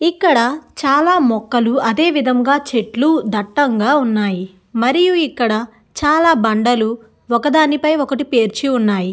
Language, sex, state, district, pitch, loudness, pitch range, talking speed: Telugu, female, Andhra Pradesh, Guntur, 255 Hz, -15 LUFS, 225-295 Hz, 110 wpm